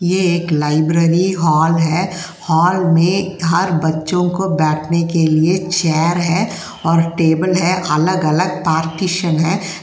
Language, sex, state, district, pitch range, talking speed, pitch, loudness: Hindi, female, Uttar Pradesh, Jyotiba Phule Nagar, 160-180 Hz, 130 wpm, 170 Hz, -15 LUFS